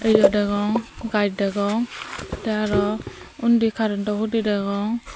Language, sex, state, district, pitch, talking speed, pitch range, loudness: Chakma, female, Tripura, Dhalai, 210 Hz, 115 wpm, 205-225 Hz, -22 LUFS